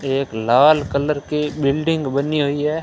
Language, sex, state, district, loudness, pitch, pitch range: Hindi, male, Rajasthan, Bikaner, -18 LUFS, 145 Hz, 140-150 Hz